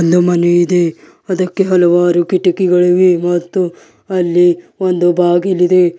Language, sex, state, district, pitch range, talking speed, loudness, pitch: Kannada, male, Karnataka, Bidar, 175-185 Hz, 100 wpm, -13 LUFS, 175 Hz